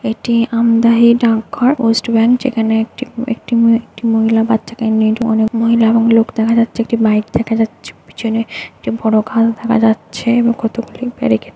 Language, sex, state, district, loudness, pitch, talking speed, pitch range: Bengali, female, West Bengal, Jhargram, -14 LUFS, 230 Hz, 175 wpm, 225-235 Hz